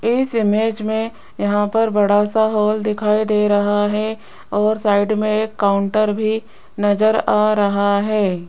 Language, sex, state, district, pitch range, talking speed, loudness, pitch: Hindi, female, Rajasthan, Jaipur, 205-220 Hz, 155 wpm, -17 LUFS, 215 Hz